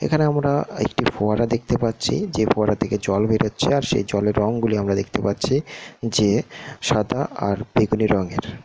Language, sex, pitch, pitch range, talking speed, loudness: Odia, male, 110 Hz, 105-130 Hz, 165 wpm, -21 LUFS